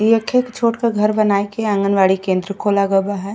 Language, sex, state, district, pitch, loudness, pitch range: Bhojpuri, female, Uttar Pradesh, Gorakhpur, 205 Hz, -17 LUFS, 200-225 Hz